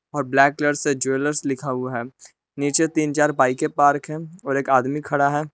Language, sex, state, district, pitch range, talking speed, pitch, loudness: Hindi, male, Jharkhand, Palamu, 135-150 Hz, 195 wpm, 145 Hz, -21 LUFS